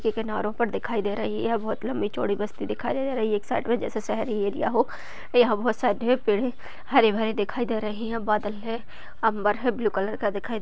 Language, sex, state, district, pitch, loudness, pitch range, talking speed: Hindi, female, Uttar Pradesh, Budaun, 220 Hz, -26 LUFS, 210-235 Hz, 235 wpm